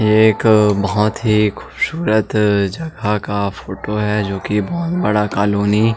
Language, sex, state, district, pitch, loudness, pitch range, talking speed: Hindi, male, Chhattisgarh, Jashpur, 105 Hz, -17 LUFS, 100-110 Hz, 140 wpm